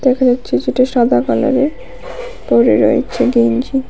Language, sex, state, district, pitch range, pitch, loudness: Bengali, female, Tripura, West Tripura, 245-275 Hz, 260 Hz, -14 LUFS